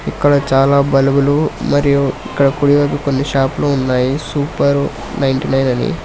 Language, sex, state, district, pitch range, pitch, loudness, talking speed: Telugu, male, Telangana, Hyderabad, 135-145 Hz, 140 Hz, -15 LUFS, 120 wpm